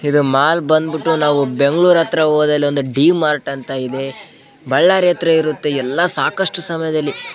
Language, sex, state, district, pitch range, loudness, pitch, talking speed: Kannada, male, Karnataka, Bellary, 140-165 Hz, -15 LUFS, 155 Hz, 155 wpm